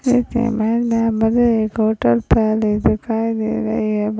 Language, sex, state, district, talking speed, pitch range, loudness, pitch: Hindi, female, Maharashtra, Chandrapur, 155 wpm, 215-230 Hz, -18 LUFS, 225 Hz